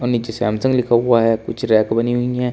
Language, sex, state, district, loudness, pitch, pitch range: Hindi, male, Uttar Pradesh, Shamli, -17 LUFS, 120 Hz, 115-125 Hz